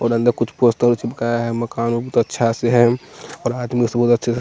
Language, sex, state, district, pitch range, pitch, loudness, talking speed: Hindi, male, Bihar, West Champaran, 115-120 Hz, 120 Hz, -18 LUFS, 205 wpm